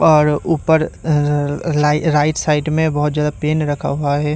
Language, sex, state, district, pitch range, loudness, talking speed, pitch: Hindi, male, Bihar, Katihar, 145-155 Hz, -17 LUFS, 180 wpm, 150 Hz